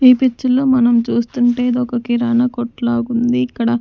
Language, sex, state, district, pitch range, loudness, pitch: Telugu, female, Andhra Pradesh, Sri Satya Sai, 235-250 Hz, -16 LUFS, 240 Hz